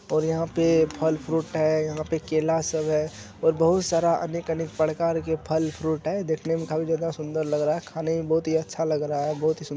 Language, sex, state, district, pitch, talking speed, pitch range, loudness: Hindi, male, Bihar, Araria, 160 Hz, 240 wpm, 155-165 Hz, -25 LUFS